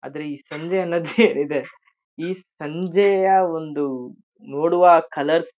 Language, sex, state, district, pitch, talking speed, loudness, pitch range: Kannada, male, Karnataka, Shimoga, 165 Hz, 120 wpm, -19 LUFS, 150-190 Hz